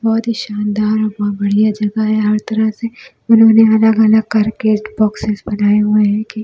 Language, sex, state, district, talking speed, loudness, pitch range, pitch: Hindi, female, Delhi, New Delhi, 175 wpm, -14 LUFS, 210-220 Hz, 215 Hz